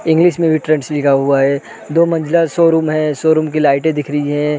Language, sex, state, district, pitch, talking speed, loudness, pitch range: Hindi, male, Uttarakhand, Uttarkashi, 155 Hz, 220 wpm, -14 LUFS, 145-160 Hz